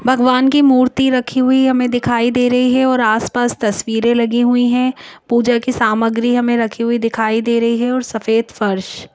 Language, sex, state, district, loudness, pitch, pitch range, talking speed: Hindi, female, Madhya Pradesh, Bhopal, -15 LUFS, 240 Hz, 230-255 Hz, 190 wpm